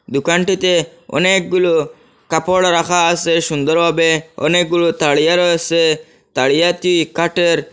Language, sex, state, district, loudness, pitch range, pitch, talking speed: Bengali, male, Assam, Hailakandi, -15 LUFS, 160-175 Hz, 170 Hz, 95 wpm